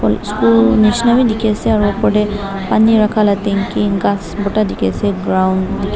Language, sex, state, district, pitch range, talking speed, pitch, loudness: Nagamese, female, Nagaland, Dimapur, 195-215 Hz, 180 wpm, 205 Hz, -14 LUFS